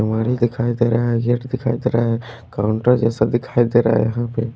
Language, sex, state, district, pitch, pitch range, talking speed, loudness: Hindi, male, Haryana, Charkhi Dadri, 120 Hz, 115-120 Hz, 145 wpm, -19 LUFS